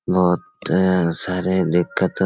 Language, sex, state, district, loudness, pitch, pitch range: Hindi, male, Chhattisgarh, Raigarh, -19 LUFS, 90 Hz, 90-95 Hz